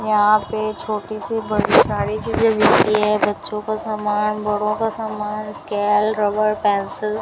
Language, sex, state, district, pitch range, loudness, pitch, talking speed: Hindi, female, Rajasthan, Bikaner, 210-215 Hz, -19 LUFS, 210 Hz, 160 wpm